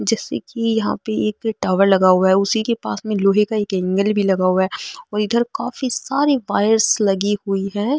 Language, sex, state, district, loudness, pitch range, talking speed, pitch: Marwari, female, Rajasthan, Nagaur, -18 LUFS, 195-225 Hz, 220 wpm, 210 Hz